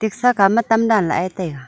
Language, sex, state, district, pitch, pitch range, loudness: Wancho, female, Arunachal Pradesh, Longding, 220 Hz, 185-230 Hz, -17 LUFS